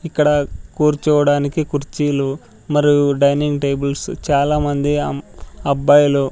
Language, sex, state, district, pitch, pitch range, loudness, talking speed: Telugu, male, Andhra Pradesh, Sri Satya Sai, 145 Hz, 140-150 Hz, -17 LUFS, 85 wpm